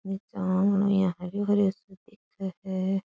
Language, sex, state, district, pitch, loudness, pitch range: Rajasthani, female, Rajasthan, Churu, 195 Hz, -27 LUFS, 190-200 Hz